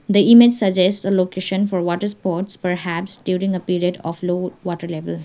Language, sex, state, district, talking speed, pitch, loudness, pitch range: English, female, Sikkim, Gangtok, 185 wpm, 185 Hz, -18 LUFS, 175-195 Hz